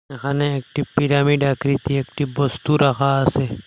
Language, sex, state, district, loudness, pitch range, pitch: Bengali, male, Assam, Hailakandi, -20 LUFS, 135-145 Hz, 140 Hz